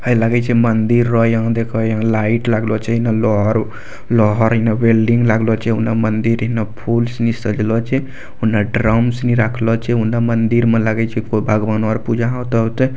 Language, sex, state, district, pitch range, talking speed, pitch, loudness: Maithili, male, Bihar, Bhagalpur, 110-115 Hz, 175 wpm, 115 Hz, -16 LUFS